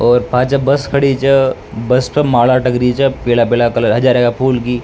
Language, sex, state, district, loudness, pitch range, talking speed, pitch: Rajasthani, male, Rajasthan, Nagaur, -13 LUFS, 120-135 Hz, 210 wpm, 125 Hz